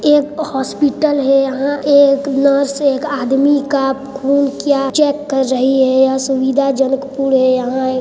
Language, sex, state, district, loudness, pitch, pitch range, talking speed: Hindi, male, Chhattisgarh, Sarguja, -14 LUFS, 275 Hz, 265-285 Hz, 150 wpm